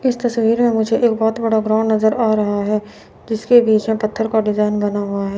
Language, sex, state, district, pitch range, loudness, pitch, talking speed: Hindi, female, Chandigarh, Chandigarh, 210-225 Hz, -17 LUFS, 220 Hz, 235 wpm